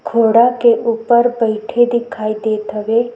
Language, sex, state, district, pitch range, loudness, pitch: Chhattisgarhi, female, Chhattisgarh, Sukma, 220-240 Hz, -15 LUFS, 230 Hz